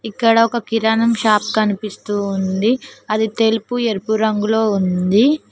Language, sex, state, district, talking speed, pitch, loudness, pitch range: Telugu, female, Telangana, Mahabubabad, 120 wpm, 220 Hz, -17 LUFS, 210-230 Hz